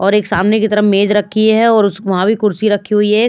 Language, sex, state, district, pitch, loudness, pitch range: Hindi, female, Bihar, Patna, 210 Hz, -13 LUFS, 200-215 Hz